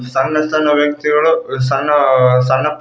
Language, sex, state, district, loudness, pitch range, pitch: Kannada, male, Karnataka, Koppal, -13 LUFS, 130-150 Hz, 145 Hz